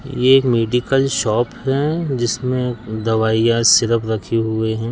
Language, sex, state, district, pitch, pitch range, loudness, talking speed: Hindi, male, Madhya Pradesh, Katni, 115 Hz, 110-130 Hz, -17 LUFS, 120 wpm